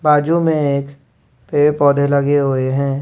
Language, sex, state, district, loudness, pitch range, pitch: Hindi, male, Madhya Pradesh, Bhopal, -15 LUFS, 140-150 Hz, 140 Hz